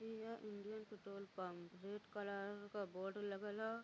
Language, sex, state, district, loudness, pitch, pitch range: Hindi, female, Uttar Pradesh, Varanasi, -50 LUFS, 205 Hz, 200-215 Hz